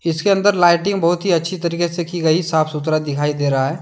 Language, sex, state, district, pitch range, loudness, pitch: Hindi, male, Jharkhand, Deoghar, 155-175 Hz, -17 LUFS, 170 Hz